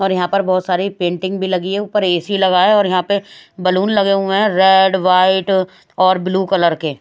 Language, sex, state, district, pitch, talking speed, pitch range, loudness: Hindi, female, Haryana, Rohtak, 190 Hz, 240 wpm, 185-195 Hz, -15 LUFS